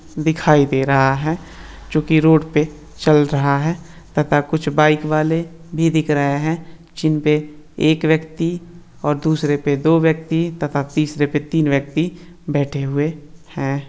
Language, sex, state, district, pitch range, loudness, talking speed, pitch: Hindi, male, Maharashtra, Nagpur, 145-160 Hz, -18 LUFS, 145 wpm, 155 Hz